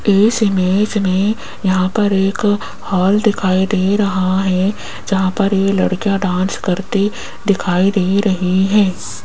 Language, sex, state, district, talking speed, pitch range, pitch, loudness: Hindi, female, Rajasthan, Jaipur, 135 wpm, 185-205 Hz, 195 Hz, -16 LUFS